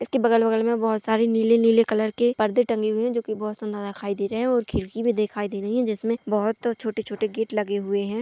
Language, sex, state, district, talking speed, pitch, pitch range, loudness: Hindi, female, Chhattisgarh, Korba, 250 wpm, 220 Hz, 210-230 Hz, -23 LUFS